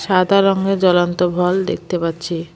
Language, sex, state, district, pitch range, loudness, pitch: Bengali, female, West Bengal, Alipurduar, 175-190 Hz, -17 LUFS, 180 Hz